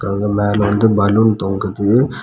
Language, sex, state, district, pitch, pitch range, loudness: Tamil, male, Tamil Nadu, Kanyakumari, 105 Hz, 100-110 Hz, -15 LUFS